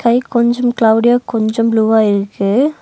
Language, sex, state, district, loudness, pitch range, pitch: Tamil, female, Tamil Nadu, Nilgiris, -13 LUFS, 220-240 Hz, 230 Hz